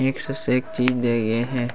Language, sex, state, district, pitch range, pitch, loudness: Chhattisgarhi, male, Chhattisgarh, Bastar, 120-125 Hz, 125 Hz, -23 LUFS